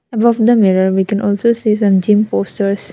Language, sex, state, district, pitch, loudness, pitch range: English, female, Assam, Kamrup Metropolitan, 205 Hz, -13 LUFS, 195-220 Hz